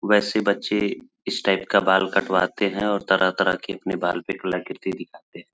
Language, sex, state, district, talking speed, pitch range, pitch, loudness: Hindi, male, Bihar, Araria, 185 wpm, 95-105 Hz, 100 Hz, -23 LUFS